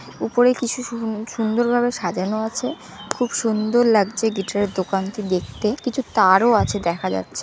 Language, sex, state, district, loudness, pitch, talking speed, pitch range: Bengali, female, West Bengal, North 24 Parganas, -21 LUFS, 220 Hz, 155 wpm, 195-240 Hz